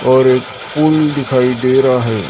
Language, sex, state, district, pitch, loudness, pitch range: Hindi, male, Maharashtra, Gondia, 130 Hz, -13 LUFS, 125-135 Hz